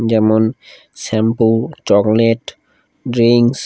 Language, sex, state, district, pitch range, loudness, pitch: Bengali, male, Odisha, Khordha, 110-120 Hz, -14 LUFS, 115 Hz